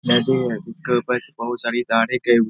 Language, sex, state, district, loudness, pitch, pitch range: Hindi, male, Bihar, Saharsa, -20 LUFS, 120 Hz, 115-125 Hz